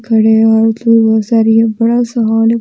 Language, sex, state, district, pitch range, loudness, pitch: Hindi, female, Jharkhand, Deoghar, 220-230 Hz, -10 LUFS, 225 Hz